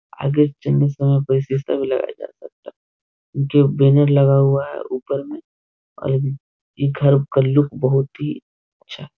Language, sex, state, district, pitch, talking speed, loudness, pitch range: Hindi, male, Bihar, Jahanabad, 140 Hz, 150 wpm, -18 LUFS, 135-145 Hz